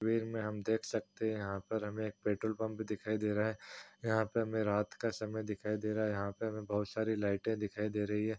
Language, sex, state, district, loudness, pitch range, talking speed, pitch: Hindi, male, Uttar Pradesh, Muzaffarnagar, -37 LUFS, 105-110 Hz, 245 wpm, 110 Hz